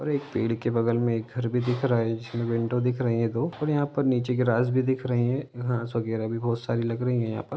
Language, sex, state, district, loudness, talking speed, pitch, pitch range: Hindi, male, Jharkhand, Sahebganj, -26 LUFS, 300 wpm, 120 Hz, 115-125 Hz